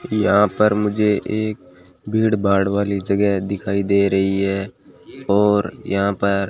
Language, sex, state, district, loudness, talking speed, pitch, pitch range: Hindi, male, Rajasthan, Bikaner, -19 LUFS, 140 wpm, 100 Hz, 100-105 Hz